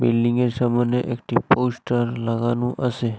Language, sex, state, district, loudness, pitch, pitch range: Bengali, male, Assam, Hailakandi, -22 LUFS, 120 Hz, 120-125 Hz